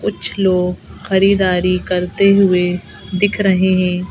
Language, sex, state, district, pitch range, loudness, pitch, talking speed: Hindi, female, Madhya Pradesh, Bhopal, 180-195 Hz, -15 LUFS, 185 Hz, 115 wpm